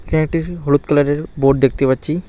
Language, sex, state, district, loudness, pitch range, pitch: Bengali, male, West Bengal, Alipurduar, -16 LUFS, 135-160 Hz, 145 Hz